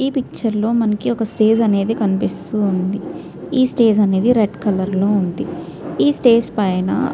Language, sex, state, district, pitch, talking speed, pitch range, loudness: Telugu, female, Andhra Pradesh, Visakhapatnam, 220 Hz, 150 wpm, 200-235 Hz, -17 LUFS